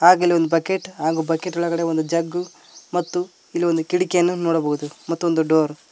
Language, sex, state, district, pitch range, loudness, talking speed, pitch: Kannada, male, Karnataka, Koppal, 160-175 Hz, -21 LUFS, 150 wpm, 170 Hz